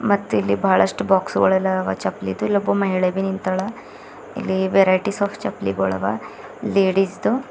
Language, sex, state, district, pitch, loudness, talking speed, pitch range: Kannada, male, Karnataka, Bidar, 190 Hz, -20 LUFS, 150 wpm, 185-200 Hz